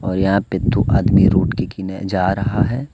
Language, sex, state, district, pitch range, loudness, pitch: Hindi, male, Jharkhand, Deoghar, 95-120 Hz, -17 LUFS, 100 Hz